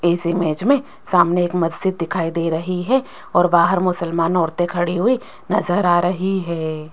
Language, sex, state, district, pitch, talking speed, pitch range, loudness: Hindi, female, Rajasthan, Jaipur, 175 Hz, 175 wpm, 170-185 Hz, -19 LUFS